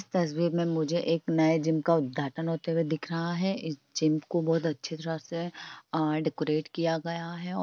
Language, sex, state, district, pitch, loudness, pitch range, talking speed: Hindi, female, Bihar, Jamui, 165 Hz, -29 LUFS, 160-170 Hz, 220 wpm